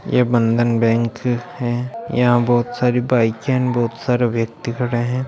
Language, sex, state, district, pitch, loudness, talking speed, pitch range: Hindi, male, Bihar, Bhagalpur, 120 Hz, -18 LUFS, 160 wpm, 120-125 Hz